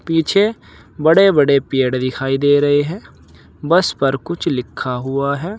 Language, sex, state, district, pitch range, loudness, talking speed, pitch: Hindi, male, Uttar Pradesh, Saharanpur, 130-165 Hz, -16 LUFS, 150 wpm, 140 Hz